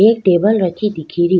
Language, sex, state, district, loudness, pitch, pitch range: Rajasthani, female, Rajasthan, Nagaur, -15 LUFS, 185 Hz, 175-210 Hz